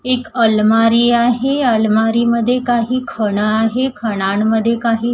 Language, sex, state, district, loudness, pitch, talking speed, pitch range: Marathi, female, Maharashtra, Gondia, -15 LUFS, 230 Hz, 115 wpm, 220-245 Hz